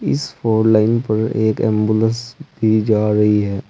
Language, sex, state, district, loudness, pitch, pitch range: Hindi, male, Uttar Pradesh, Saharanpur, -16 LUFS, 110 Hz, 105-110 Hz